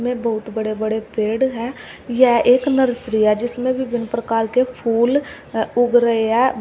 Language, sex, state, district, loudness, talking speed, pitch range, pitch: Hindi, female, Uttar Pradesh, Shamli, -18 LUFS, 165 wpm, 225-255 Hz, 240 Hz